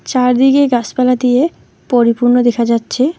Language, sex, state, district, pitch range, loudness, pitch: Bengali, female, West Bengal, Alipurduar, 240-260 Hz, -13 LUFS, 250 Hz